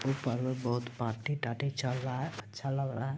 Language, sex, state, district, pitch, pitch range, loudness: Hindi, male, Bihar, Araria, 130 Hz, 120-135 Hz, -35 LUFS